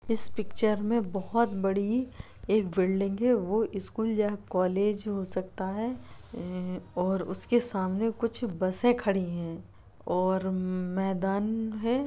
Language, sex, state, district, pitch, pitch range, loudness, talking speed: Hindi, female, Bihar, Sitamarhi, 195 Hz, 185-225 Hz, -29 LUFS, 135 wpm